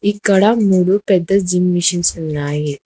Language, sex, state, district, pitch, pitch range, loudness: Telugu, female, Telangana, Hyderabad, 180 Hz, 170-200 Hz, -15 LUFS